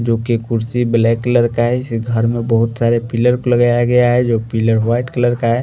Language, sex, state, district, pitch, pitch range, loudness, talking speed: Hindi, male, Delhi, New Delhi, 120 Hz, 115-120 Hz, -15 LUFS, 235 wpm